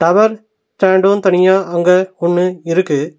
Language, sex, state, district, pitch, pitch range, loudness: Tamil, male, Tamil Nadu, Nilgiris, 185 Hz, 175-195 Hz, -13 LUFS